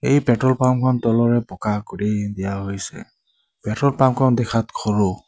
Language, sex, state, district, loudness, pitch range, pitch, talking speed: Assamese, male, Assam, Sonitpur, -20 LUFS, 105-130 Hz, 115 Hz, 135 wpm